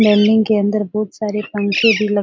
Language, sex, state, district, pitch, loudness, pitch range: Hindi, female, Bihar, Jahanabad, 210 Hz, -16 LUFS, 205-215 Hz